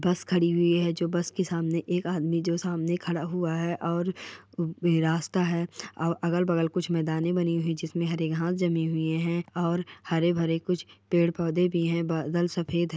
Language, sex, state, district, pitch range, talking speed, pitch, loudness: Hindi, female, Rajasthan, Churu, 165-175 Hz, 200 wpm, 170 Hz, -27 LUFS